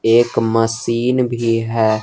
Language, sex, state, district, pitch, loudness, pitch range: Hindi, male, Jharkhand, Garhwa, 115 Hz, -17 LUFS, 115-120 Hz